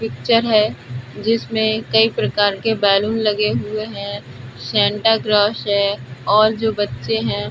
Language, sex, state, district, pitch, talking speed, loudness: Hindi, female, Uttar Pradesh, Budaun, 205 Hz, 145 wpm, -18 LUFS